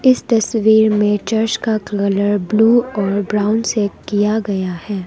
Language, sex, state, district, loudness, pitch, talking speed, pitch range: Hindi, female, Arunachal Pradesh, Longding, -16 LUFS, 210 Hz, 155 wpm, 200-220 Hz